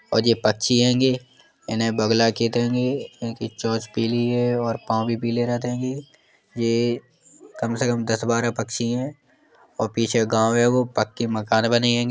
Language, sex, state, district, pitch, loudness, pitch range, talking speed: Bundeli, male, Uttar Pradesh, Jalaun, 115 Hz, -22 LUFS, 115-120 Hz, 180 wpm